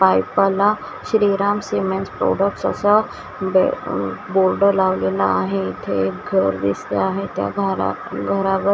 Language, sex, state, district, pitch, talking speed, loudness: Marathi, female, Maharashtra, Washim, 195 Hz, 115 wpm, -19 LUFS